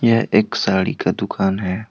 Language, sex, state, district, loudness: Hindi, male, Jharkhand, Deoghar, -19 LUFS